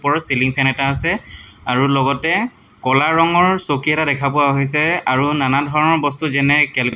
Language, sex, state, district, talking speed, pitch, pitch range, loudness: Assamese, male, Assam, Hailakandi, 180 wpm, 145 Hz, 135-160 Hz, -16 LUFS